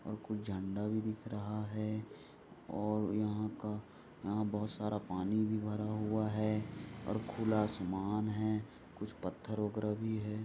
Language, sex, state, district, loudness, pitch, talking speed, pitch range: Hindi, male, Maharashtra, Sindhudurg, -38 LUFS, 105 Hz, 160 wpm, 105-110 Hz